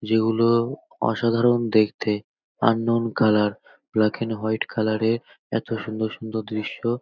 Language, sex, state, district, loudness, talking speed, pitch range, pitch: Bengali, male, West Bengal, North 24 Parganas, -23 LUFS, 120 wpm, 110-115 Hz, 110 Hz